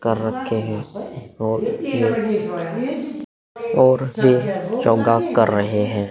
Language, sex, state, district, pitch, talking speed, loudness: Hindi, male, Bihar, Vaishali, 125 Hz, 110 wpm, -19 LUFS